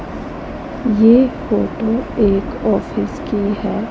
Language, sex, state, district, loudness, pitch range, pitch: Hindi, female, Punjab, Pathankot, -16 LUFS, 205-240 Hz, 220 Hz